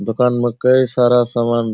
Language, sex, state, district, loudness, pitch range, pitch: Hindi, male, Bihar, Purnia, -15 LUFS, 120-125 Hz, 120 Hz